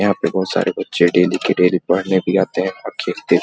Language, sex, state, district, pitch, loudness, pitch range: Hindi, male, Bihar, Muzaffarpur, 95 Hz, -17 LUFS, 90-95 Hz